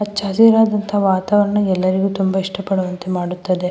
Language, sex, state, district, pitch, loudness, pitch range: Kannada, female, Karnataka, Mysore, 195 Hz, -17 LUFS, 185-205 Hz